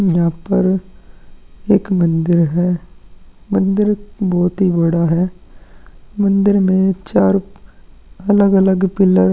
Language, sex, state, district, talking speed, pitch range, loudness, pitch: Hindi, male, Maharashtra, Aurangabad, 110 wpm, 115-195 Hz, -15 LUFS, 180 Hz